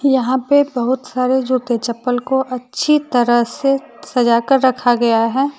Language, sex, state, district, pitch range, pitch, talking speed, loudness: Hindi, female, Jharkhand, Deoghar, 240-270 Hz, 255 Hz, 160 wpm, -16 LUFS